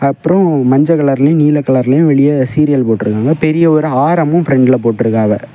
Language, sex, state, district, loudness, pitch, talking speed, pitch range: Tamil, male, Tamil Nadu, Kanyakumari, -11 LUFS, 140 Hz, 150 wpm, 130-155 Hz